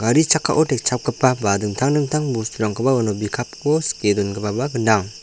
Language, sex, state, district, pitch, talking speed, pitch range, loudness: Garo, male, Meghalaya, South Garo Hills, 120 Hz, 140 wpm, 105-145 Hz, -19 LUFS